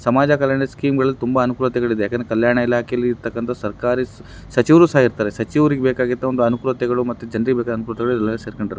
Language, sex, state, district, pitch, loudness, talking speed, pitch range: Kannada, male, Karnataka, Dakshina Kannada, 120 Hz, -18 LUFS, 165 wpm, 115-130 Hz